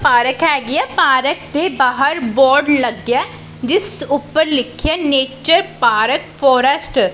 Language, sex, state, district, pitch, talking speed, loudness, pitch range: Punjabi, female, Punjab, Pathankot, 285 Hz, 125 wpm, -15 LUFS, 265-315 Hz